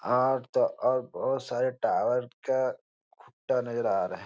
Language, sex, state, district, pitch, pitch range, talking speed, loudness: Hindi, male, Bihar, Jahanabad, 125 Hz, 125-130 Hz, 170 wpm, -29 LUFS